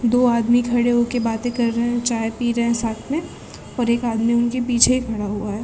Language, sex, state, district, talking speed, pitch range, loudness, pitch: Hindi, female, Maharashtra, Aurangabad, 245 wpm, 230-245 Hz, -20 LUFS, 235 Hz